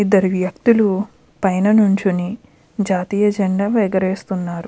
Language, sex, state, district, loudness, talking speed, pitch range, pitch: Telugu, female, Andhra Pradesh, Krishna, -17 LUFS, 90 wpm, 185-210 Hz, 195 Hz